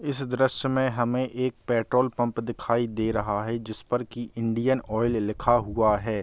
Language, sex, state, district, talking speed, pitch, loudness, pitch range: Hindi, male, Bihar, Gopalganj, 185 wpm, 120 Hz, -25 LUFS, 110-125 Hz